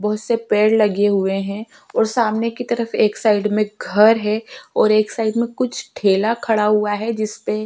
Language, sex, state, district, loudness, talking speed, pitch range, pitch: Hindi, female, Uttarakhand, Tehri Garhwal, -18 LUFS, 210 wpm, 210-230 Hz, 215 Hz